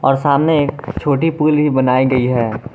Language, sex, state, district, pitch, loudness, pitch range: Hindi, male, Jharkhand, Garhwa, 140 Hz, -15 LUFS, 130-150 Hz